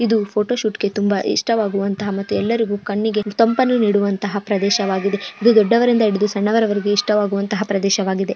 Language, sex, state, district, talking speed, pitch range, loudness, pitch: Kannada, female, Karnataka, Chamarajanagar, 110 wpm, 200-220 Hz, -18 LUFS, 205 Hz